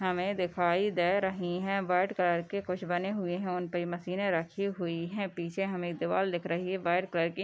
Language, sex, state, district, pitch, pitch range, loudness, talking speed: Hindi, female, Bihar, Madhepura, 180 Hz, 175-195 Hz, -32 LUFS, 235 wpm